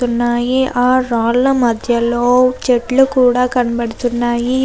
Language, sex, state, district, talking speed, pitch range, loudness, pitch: Telugu, female, Andhra Pradesh, Krishna, 90 wpm, 240-255 Hz, -14 LUFS, 245 Hz